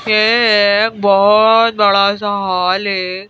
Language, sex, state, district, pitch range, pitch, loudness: Hindi, female, Madhya Pradesh, Bhopal, 200-215 Hz, 205 Hz, -12 LUFS